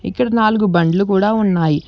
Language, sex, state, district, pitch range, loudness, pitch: Telugu, female, Telangana, Hyderabad, 170-215 Hz, -15 LUFS, 200 Hz